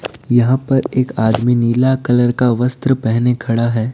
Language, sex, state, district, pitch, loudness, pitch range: Hindi, male, Odisha, Nuapada, 125 Hz, -15 LUFS, 115-130 Hz